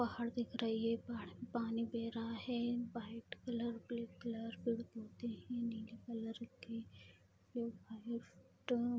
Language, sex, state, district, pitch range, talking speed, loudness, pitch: Hindi, female, Bihar, Bhagalpur, 230-240 Hz, 135 wpm, -43 LUFS, 235 Hz